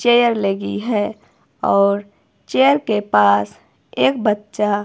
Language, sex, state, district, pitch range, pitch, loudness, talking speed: Hindi, female, Himachal Pradesh, Shimla, 200-230 Hz, 205 Hz, -17 LUFS, 110 wpm